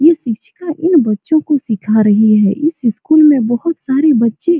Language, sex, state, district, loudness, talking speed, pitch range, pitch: Hindi, female, Bihar, Supaul, -13 LUFS, 195 wpm, 220-315 Hz, 275 Hz